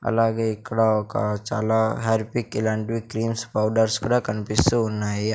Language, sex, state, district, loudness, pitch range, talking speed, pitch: Telugu, male, Andhra Pradesh, Sri Satya Sai, -23 LUFS, 110-115 Hz, 125 wpm, 110 Hz